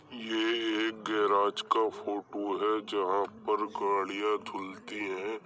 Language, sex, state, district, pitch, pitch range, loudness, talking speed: Hindi, male, Uttar Pradesh, Jyotiba Phule Nagar, 105 Hz, 100-110 Hz, -31 LUFS, 120 wpm